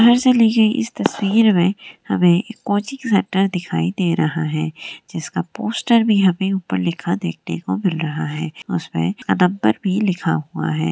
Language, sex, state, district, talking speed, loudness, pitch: Hindi, female, Maharashtra, Aurangabad, 150 wpm, -19 LUFS, 185 Hz